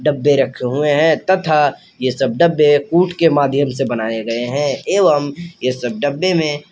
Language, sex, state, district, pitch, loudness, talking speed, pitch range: Hindi, male, Jharkhand, Palamu, 145 Hz, -16 LUFS, 190 wpm, 130-160 Hz